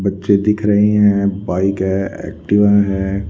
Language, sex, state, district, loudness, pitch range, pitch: Hindi, male, Haryana, Rohtak, -15 LUFS, 95-105 Hz, 100 Hz